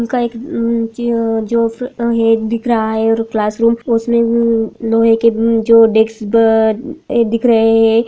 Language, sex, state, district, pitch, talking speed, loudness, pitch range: Hindi, female, Uttar Pradesh, Jyotiba Phule Nagar, 230 Hz, 135 wpm, -14 LUFS, 225-235 Hz